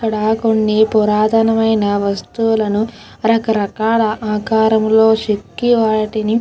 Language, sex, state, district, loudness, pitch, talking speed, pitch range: Telugu, female, Andhra Pradesh, Krishna, -15 LUFS, 220 Hz, 85 wpm, 215-225 Hz